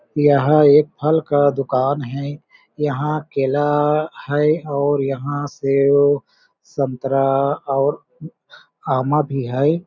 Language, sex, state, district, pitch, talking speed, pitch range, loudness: Hindi, male, Chhattisgarh, Balrampur, 145 Hz, 105 wpm, 140-150 Hz, -18 LUFS